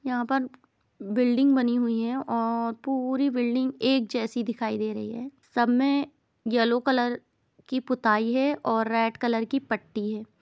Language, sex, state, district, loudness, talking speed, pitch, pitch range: Hindi, female, Bihar, East Champaran, -26 LUFS, 160 wpm, 240 Hz, 230-260 Hz